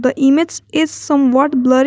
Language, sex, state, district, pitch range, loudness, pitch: English, female, Jharkhand, Garhwa, 260-295 Hz, -14 LUFS, 275 Hz